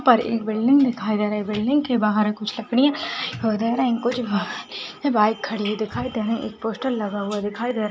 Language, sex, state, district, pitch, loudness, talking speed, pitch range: Hindi, female, Chhattisgarh, Jashpur, 225 Hz, -22 LUFS, 220 wpm, 210-245 Hz